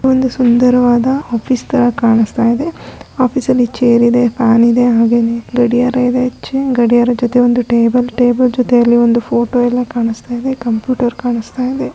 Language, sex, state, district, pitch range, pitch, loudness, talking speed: Kannada, female, Karnataka, Raichur, 235-250 Hz, 245 Hz, -13 LUFS, 125 wpm